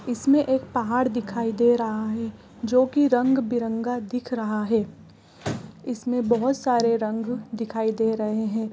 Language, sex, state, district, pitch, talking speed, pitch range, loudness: Hindi, female, Bihar, East Champaran, 235 Hz, 150 wpm, 225-245 Hz, -24 LUFS